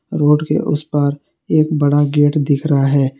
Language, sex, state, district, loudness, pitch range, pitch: Hindi, male, Jharkhand, Garhwa, -15 LUFS, 140-150 Hz, 145 Hz